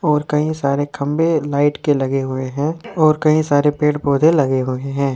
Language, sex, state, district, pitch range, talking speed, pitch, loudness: Hindi, male, Jharkhand, Deoghar, 140-155 Hz, 200 wpm, 145 Hz, -17 LUFS